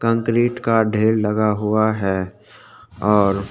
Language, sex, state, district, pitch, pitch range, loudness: Hindi, male, Uttarakhand, Tehri Garhwal, 105 Hz, 105-115 Hz, -18 LUFS